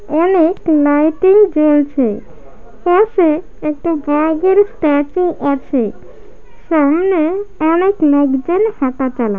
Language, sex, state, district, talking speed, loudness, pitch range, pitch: Bengali, female, West Bengal, Malda, 75 wpm, -14 LUFS, 290-360 Hz, 315 Hz